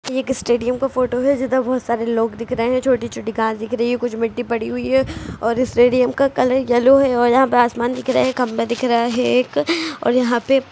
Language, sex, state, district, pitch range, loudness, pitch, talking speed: Hindi, female, Uttar Pradesh, Jalaun, 235-260 Hz, -18 LUFS, 245 Hz, 245 wpm